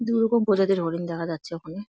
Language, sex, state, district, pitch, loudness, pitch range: Bengali, female, West Bengal, Jalpaiguri, 190 Hz, -24 LUFS, 165-220 Hz